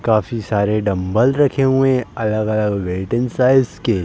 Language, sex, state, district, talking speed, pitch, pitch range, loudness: Hindi, male, Uttar Pradesh, Jalaun, 150 wpm, 110 Hz, 105-130 Hz, -17 LUFS